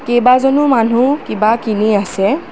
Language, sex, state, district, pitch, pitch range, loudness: Assamese, female, Assam, Kamrup Metropolitan, 240 Hz, 215-270 Hz, -13 LUFS